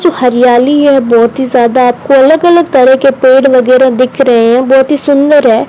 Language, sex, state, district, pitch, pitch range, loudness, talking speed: Hindi, female, Rajasthan, Bikaner, 265 Hz, 250-280 Hz, -7 LUFS, 210 wpm